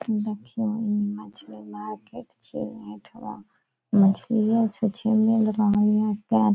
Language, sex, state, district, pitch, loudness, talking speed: Maithili, female, Bihar, Saharsa, 210 Hz, -24 LUFS, 120 wpm